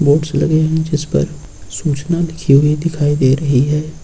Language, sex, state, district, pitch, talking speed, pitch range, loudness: Hindi, male, Uttar Pradesh, Lucknow, 150 Hz, 195 wpm, 140-155 Hz, -15 LUFS